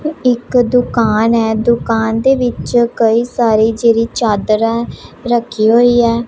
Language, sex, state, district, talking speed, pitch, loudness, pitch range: Punjabi, female, Punjab, Pathankot, 135 wpm, 235 Hz, -13 LUFS, 225-245 Hz